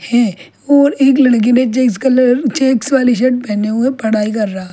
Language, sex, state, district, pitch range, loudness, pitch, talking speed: Hindi, female, Delhi, New Delhi, 220-265 Hz, -13 LUFS, 245 Hz, 205 wpm